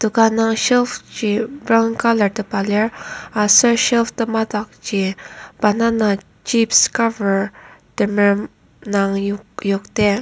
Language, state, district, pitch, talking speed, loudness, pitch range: Ao, Nagaland, Kohima, 215 Hz, 100 wpm, -17 LUFS, 205-230 Hz